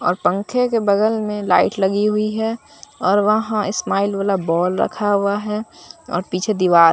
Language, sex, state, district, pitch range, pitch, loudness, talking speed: Hindi, male, Bihar, Katihar, 190-215 Hz, 205 Hz, -19 LUFS, 175 wpm